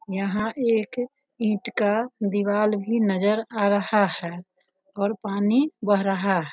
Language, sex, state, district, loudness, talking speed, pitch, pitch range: Hindi, female, Bihar, Darbhanga, -24 LUFS, 140 wpm, 205 Hz, 195-225 Hz